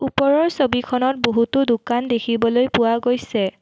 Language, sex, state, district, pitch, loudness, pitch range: Assamese, female, Assam, Kamrup Metropolitan, 245 Hz, -19 LUFS, 230-265 Hz